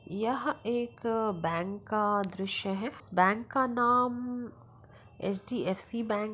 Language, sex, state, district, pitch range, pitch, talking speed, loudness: Hindi, female, Uttar Pradesh, Jyotiba Phule Nagar, 185-240 Hz, 210 Hz, 125 wpm, -31 LUFS